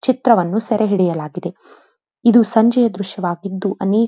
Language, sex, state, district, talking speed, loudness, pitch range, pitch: Kannada, female, Karnataka, Dharwad, 105 wpm, -17 LUFS, 185-230 Hz, 205 Hz